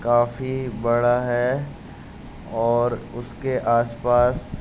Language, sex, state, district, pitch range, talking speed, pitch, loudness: Hindi, male, Uttar Pradesh, Jalaun, 120-130 Hz, 90 wpm, 120 Hz, -22 LUFS